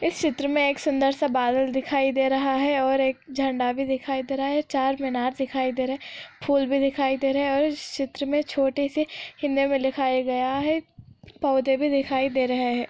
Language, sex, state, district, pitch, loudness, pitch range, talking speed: Hindi, female, Andhra Pradesh, Anantapur, 275 Hz, -24 LUFS, 265-285 Hz, 195 wpm